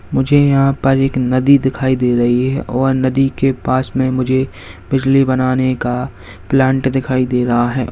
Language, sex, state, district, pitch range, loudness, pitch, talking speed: Hindi, male, Uttar Pradesh, Lalitpur, 125-135 Hz, -15 LUFS, 130 Hz, 175 wpm